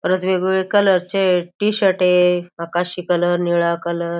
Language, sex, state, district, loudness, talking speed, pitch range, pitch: Marathi, female, Maharashtra, Aurangabad, -18 LUFS, 155 wpm, 175-190 Hz, 180 Hz